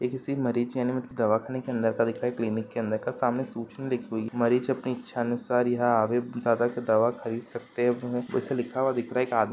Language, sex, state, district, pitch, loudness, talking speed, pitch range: Bhojpuri, male, Bihar, Saran, 120 Hz, -28 LUFS, 250 wpm, 115-125 Hz